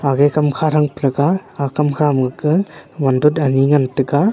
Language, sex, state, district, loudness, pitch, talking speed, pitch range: Wancho, male, Arunachal Pradesh, Longding, -16 LUFS, 145 Hz, 210 wpm, 135-150 Hz